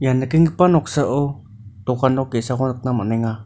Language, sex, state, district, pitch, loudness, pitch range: Garo, male, Meghalaya, North Garo Hills, 130 Hz, -19 LUFS, 115-140 Hz